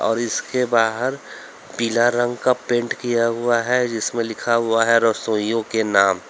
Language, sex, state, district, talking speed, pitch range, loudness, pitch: Hindi, male, Uttar Pradesh, Lalitpur, 160 wpm, 115-120 Hz, -20 LUFS, 115 Hz